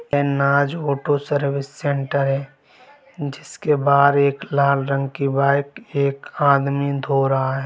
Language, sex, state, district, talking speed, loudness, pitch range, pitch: Hindi, male, Bihar, Gaya, 140 wpm, -20 LUFS, 140-145 Hz, 140 Hz